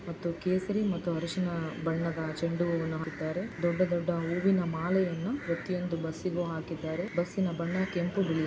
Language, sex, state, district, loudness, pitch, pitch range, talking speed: Kannada, female, Karnataka, Dakshina Kannada, -32 LUFS, 175 Hz, 165-185 Hz, 135 wpm